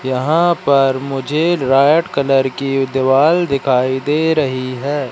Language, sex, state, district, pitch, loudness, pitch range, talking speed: Hindi, male, Madhya Pradesh, Katni, 135 Hz, -15 LUFS, 130-150 Hz, 130 wpm